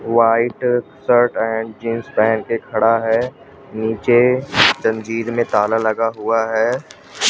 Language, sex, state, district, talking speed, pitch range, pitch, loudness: Hindi, male, Maharashtra, Mumbai Suburban, 125 wpm, 110-120 Hz, 115 Hz, -17 LUFS